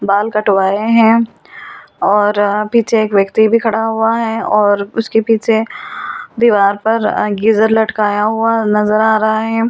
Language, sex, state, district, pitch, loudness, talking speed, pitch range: Hindi, female, Delhi, New Delhi, 220 Hz, -13 LUFS, 140 wpm, 210-225 Hz